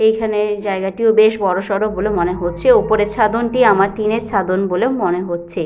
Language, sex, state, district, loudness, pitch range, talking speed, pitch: Bengali, female, West Bengal, Paschim Medinipur, -16 LUFS, 185-220 Hz, 170 wpm, 210 Hz